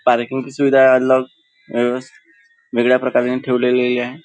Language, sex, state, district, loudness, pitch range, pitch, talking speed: Marathi, male, Maharashtra, Nagpur, -16 LUFS, 125-135 Hz, 130 Hz, 115 wpm